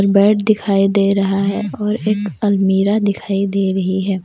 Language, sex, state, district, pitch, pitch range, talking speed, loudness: Hindi, female, Jharkhand, Deoghar, 200 Hz, 195-205 Hz, 170 wpm, -16 LUFS